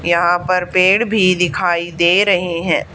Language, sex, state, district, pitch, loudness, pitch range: Hindi, female, Haryana, Charkhi Dadri, 180 Hz, -14 LUFS, 170-185 Hz